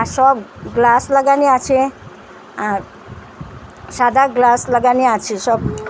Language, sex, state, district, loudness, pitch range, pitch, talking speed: Bengali, female, Assam, Hailakandi, -15 LUFS, 240-270 Hz, 250 Hz, 100 wpm